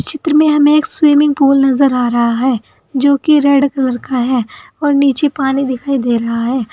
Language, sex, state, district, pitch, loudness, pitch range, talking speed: Hindi, female, Uttar Pradesh, Saharanpur, 275 Hz, -13 LUFS, 250-290 Hz, 205 wpm